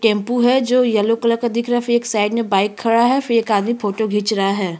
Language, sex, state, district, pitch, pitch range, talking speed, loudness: Hindi, female, Chhattisgarh, Kabirdham, 230 Hz, 210-240 Hz, 285 wpm, -17 LUFS